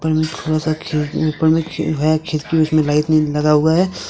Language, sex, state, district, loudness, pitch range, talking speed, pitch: Hindi, male, Jharkhand, Deoghar, -17 LUFS, 155-160 Hz, 205 wpm, 155 Hz